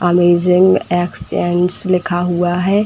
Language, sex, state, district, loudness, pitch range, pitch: Hindi, female, Uttar Pradesh, Etah, -14 LUFS, 175-180 Hz, 175 Hz